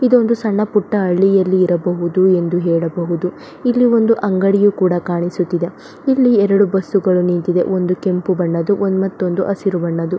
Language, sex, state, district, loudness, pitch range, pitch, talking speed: Kannada, female, Karnataka, Belgaum, -16 LUFS, 175-205 Hz, 185 Hz, 130 wpm